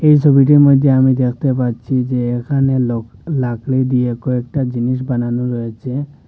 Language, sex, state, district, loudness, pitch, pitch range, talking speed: Bengali, male, Assam, Hailakandi, -15 LUFS, 130 Hz, 120-135 Hz, 155 wpm